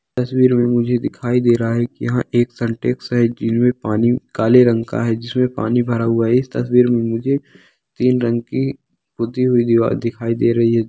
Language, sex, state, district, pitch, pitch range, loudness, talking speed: Hindi, male, Bihar, Samastipur, 120 Hz, 115-125 Hz, -17 LUFS, 210 wpm